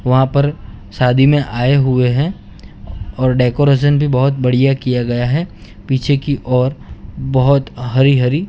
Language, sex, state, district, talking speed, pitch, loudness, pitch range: Hindi, male, Gujarat, Gandhinagar, 150 wpm, 130 Hz, -14 LUFS, 125-140 Hz